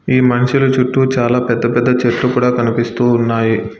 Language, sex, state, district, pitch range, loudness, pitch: Telugu, male, Telangana, Hyderabad, 120-125 Hz, -14 LUFS, 120 Hz